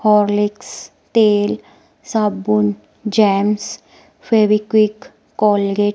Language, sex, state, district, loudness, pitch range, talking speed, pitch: Hindi, female, Himachal Pradesh, Shimla, -16 LUFS, 205-215 Hz, 70 wpm, 210 Hz